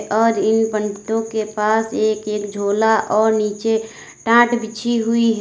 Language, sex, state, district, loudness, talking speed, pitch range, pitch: Hindi, female, Uttar Pradesh, Lalitpur, -18 LUFS, 155 wpm, 215-225 Hz, 220 Hz